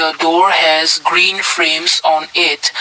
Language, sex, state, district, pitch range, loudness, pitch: English, male, Assam, Kamrup Metropolitan, 155-165 Hz, -11 LUFS, 160 Hz